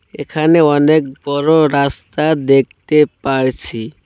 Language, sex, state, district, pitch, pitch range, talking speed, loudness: Bengali, male, West Bengal, Cooch Behar, 145 Hz, 135-155 Hz, 90 wpm, -14 LUFS